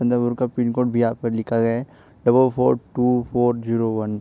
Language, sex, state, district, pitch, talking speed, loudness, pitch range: Hindi, male, Maharashtra, Chandrapur, 120 Hz, 230 wpm, -21 LUFS, 115-125 Hz